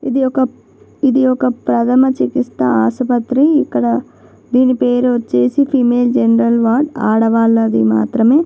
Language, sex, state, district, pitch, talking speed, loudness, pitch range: Telugu, female, Telangana, Nalgonda, 245 Hz, 100 wpm, -14 LUFS, 225-260 Hz